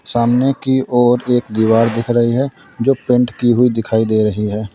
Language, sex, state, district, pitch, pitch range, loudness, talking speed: Hindi, male, Uttar Pradesh, Lalitpur, 120 Hz, 110-125 Hz, -15 LUFS, 200 wpm